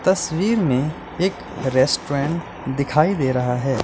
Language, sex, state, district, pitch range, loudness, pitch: Hindi, male, Uttar Pradesh, Lalitpur, 135-180 Hz, -21 LUFS, 145 Hz